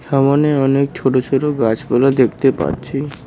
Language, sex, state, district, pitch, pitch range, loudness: Bengali, male, West Bengal, Cooch Behar, 135 Hz, 130-140 Hz, -16 LUFS